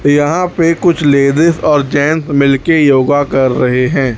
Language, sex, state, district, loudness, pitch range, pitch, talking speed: Hindi, male, Chhattisgarh, Raipur, -11 LUFS, 140-160 Hz, 145 Hz, 160 wpm